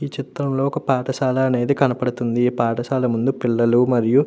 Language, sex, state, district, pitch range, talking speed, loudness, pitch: Telugu, male, Andhra Pradesh, Anantapur, 120-135 Hz, 170 wpm, -20 LUFS, 130 Hz